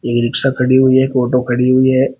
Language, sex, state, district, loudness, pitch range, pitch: Hindi, male, Uttar Pradesh, Shamli, -13 LUFS, 125-130 Hz, 130 Hz